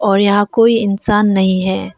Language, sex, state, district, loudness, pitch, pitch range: Hindi, female, Arunachal Pradesh, Longding, -13 LUFS, 200 Hz, 190-210 Hz